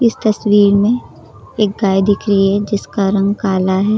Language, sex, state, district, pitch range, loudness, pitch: Hindi, female, Uttar Pradesh, Lucknow, 195-210 Hz, -14 LUFS, 205 Hz